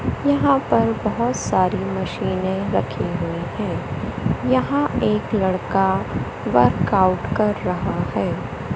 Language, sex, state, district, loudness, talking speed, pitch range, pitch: Hindi, male, Madhya Pradesh, Katni, -21 LUFS, 110 wpm, 140-200 Hz, 185 Hz